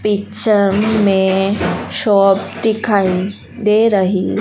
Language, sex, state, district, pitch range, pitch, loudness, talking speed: Hindi, female, Madhya Pradesh, Dhar, 195-215 Hz, 205 Hz, -15 LUFS, 80 wpm